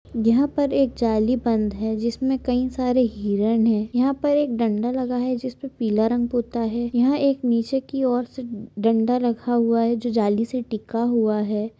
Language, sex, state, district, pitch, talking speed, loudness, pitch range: Hindi, female, Chhattisgarh, Balrampur, 240 Hz, 200 wpm, -22 LUFS, 225-255 Hz